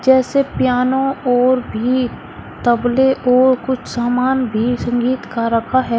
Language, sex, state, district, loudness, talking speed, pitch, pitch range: Hindi, female, Uttar Pradesh, Shamli, -16 LUFS, 130 wpm, 250 Hz, 245-260 Hz